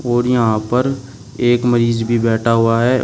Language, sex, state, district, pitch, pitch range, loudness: Hindi, male, Uttar Pradesh, Shamli, 120 Hz, 115-125 Hz, -15 LUFS